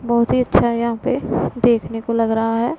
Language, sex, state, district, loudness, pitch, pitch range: Hindi, female, Punjab, Pathankot, -18 LUFS, 235 Hz, 230-245 Hz